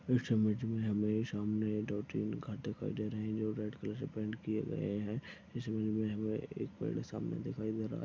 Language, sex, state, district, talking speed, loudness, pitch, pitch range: Hindi, male, Chhattisgarh, Bastar, 230 wpm, -38 LUFS, 110 Hz, 105-110 Hz